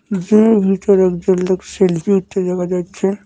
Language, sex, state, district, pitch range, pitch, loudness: Bengali, male, West Bengal, Cooch Behar, 180-200 Hz, 190 Hz, -15 LUFS